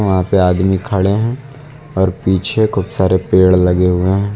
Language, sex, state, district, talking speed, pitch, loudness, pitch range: Hindi, male, Uttar Pradesh, Lucknow, 180 wpm, 95 Hz, -14 LUFS, 95-105 Hz